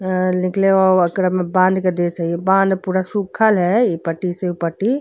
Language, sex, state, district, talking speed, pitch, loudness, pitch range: Bhojpuri, female, Uttar Pradesh, Deoria, 205 wpm, 185 Hz, -17 LUFS, 180-195 Hz